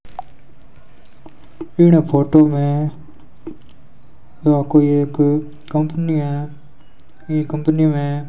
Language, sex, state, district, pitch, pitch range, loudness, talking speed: Hindi, male, Rajasthan, Bikaner, 150 Hz, 145-155 Hz, -16 LUFS, 85 wpm